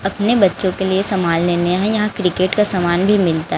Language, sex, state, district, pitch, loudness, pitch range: Hindi, female, Chhattisgarh, Raipur, 190 Hz, -16 LUFS, 175-205 Hz